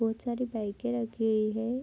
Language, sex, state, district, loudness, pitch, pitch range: Hindi, female, Bihar, Darbhanga, -31 LUFS, 225 Hz, 220-240 Hz